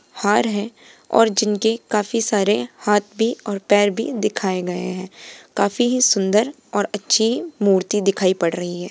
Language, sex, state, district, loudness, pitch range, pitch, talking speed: Hindi, female, Bihar, Purnia, -19 LUFS, 195-225 Hz, 210 Hz, 160 wpm